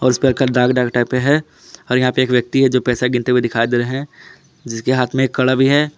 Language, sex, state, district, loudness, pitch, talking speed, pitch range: Hindi, male, Jharkhand, Palamu, -16 LUFS, 125 Hz, 220 wpm, 125-130 Hz